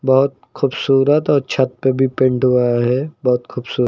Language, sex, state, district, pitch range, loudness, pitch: Hindi, male, Uttar Pradesh, Lucknow, 125-135 Hz, -17 LUFS, 130 Hz